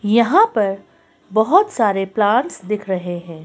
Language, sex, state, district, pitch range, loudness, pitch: Hindi, female, Madhya Pradesh, Bhopal, 195-235 Hz, -17 LUFS, 210 Hz